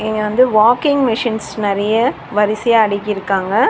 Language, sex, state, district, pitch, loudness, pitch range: Tamil, female, Tamil Nadu, Chennai, 215 Hz, -15 LUFS, 210-235 Hz